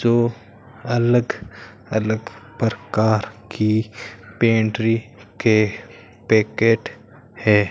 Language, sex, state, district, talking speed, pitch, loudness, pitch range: Hindi, male, Rajasthan, Bikaner, 70 wpm, 110 Hz, -20 LUFS, 105-115 Hz